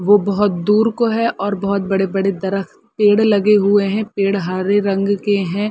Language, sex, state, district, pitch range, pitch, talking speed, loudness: Hindi, female, Chhattisgarh, Bilaspur, 195-210 Hz, 200 Hz, 190 wpm, -16 LUFS